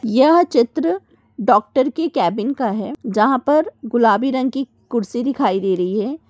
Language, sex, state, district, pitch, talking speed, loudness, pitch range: Hindi, female, Uttar Pradesh, Deoria, 260 Hz, 160 wpm, -18 LUFS, 225-285 Hz